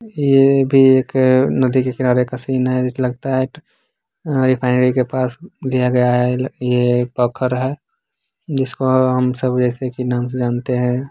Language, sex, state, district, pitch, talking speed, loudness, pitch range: Angika, male, Bihar, Begusarai, 130 Hz, 165 wpm, -17 LUFS, 125-135 Hz